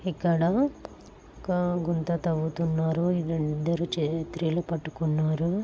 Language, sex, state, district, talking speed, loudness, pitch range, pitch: Telugu, female, Telangana, Karimnagar, 75 wpm, -27 LUFS, 160-175 Hz, 170 Hz